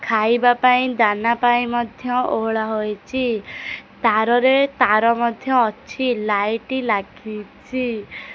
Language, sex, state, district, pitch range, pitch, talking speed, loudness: Odia, female, Odisha, Khordha, 220-250 Hz, 235 Hz, 100 wpm, -19 LUFS